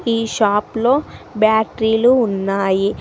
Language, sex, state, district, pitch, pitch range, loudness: Telugu, female, Telangana, Mahabubabad, 220 Hz, 205-230 Hz, -16 LUFS